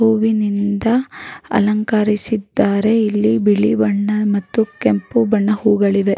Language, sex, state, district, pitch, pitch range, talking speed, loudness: Kannada, female, Karnataka, Raichur, 210 Hz, 200-220 Hz, 85 wpm, -16 LUFS